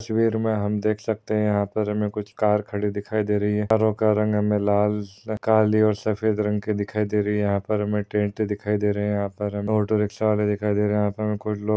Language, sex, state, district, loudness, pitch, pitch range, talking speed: Hindi, male, Maharashtra, Aurangabad, -23 LUFS, 105 Hz, 105-110 Hz, 265 wpm